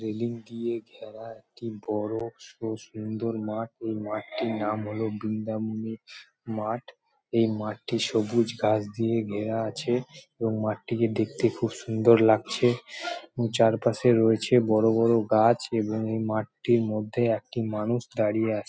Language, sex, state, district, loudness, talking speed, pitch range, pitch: Bengali, male, West Bengal, Malda, -27 LUFS, 130 wpm, 110-115 Hz, 110 Hz